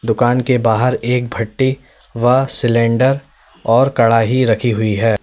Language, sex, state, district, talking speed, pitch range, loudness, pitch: Hindi, male, Uttar Pradesh, Lalitpur, 135 wpm, 115-130 Hz, -15 LUFS, 120 Hz